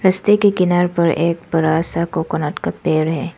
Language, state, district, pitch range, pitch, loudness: Hindi, Arunachal Pradesh, Lower Dibang Valley, 165-185 Hz, 170 Hz, -17 LUFS